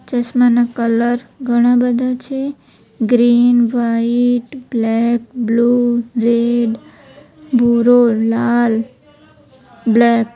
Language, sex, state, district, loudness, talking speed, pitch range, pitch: Gujarati, female, Gujarat, Valsad, -15 LUFS, 80 wpm, 235-245 Hz, 240 Hz